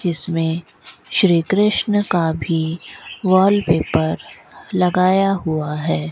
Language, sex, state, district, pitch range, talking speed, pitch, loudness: Hindi, female, Rajasthan, Bikaner, 160-195 Hz, 90 wpm, 175 Hz, -18 LUFS